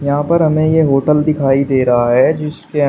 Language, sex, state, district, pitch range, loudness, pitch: Hindi, male, Uttar Pradesh, Shamli, 135-155 Hz, -13 LUFS, 145 Hz